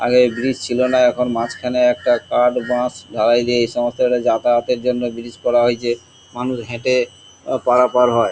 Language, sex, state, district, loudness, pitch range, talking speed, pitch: Bengali, male, West Bengal, Kolkata, -18 LUFS, 120-125 Hz, 165 wpm, 125 Hz